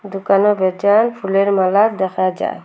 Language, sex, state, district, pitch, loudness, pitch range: Bengali, female, Assam, Hailakandi, 195 Hz, -16 LUFS, 190-205 Hz